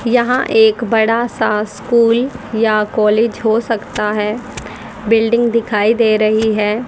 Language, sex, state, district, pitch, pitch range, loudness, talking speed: Hindi, female, Haryana, Rohtak, 225 Hz, 215-235 Hz, -14 LUFS, 130 wpm